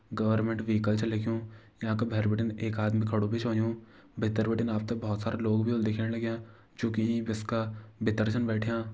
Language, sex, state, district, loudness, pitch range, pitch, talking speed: Garhwali, male, Uttarakhand, Uttarkashi, -30 LUFS, 110-115 Hz, 110 Hz, 195 wpm